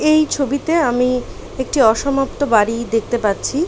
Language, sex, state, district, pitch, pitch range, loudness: Bengali, female, West Bengal, Paschim Medinipur, 270 Hz, 230-290 Hz, -17 LUFS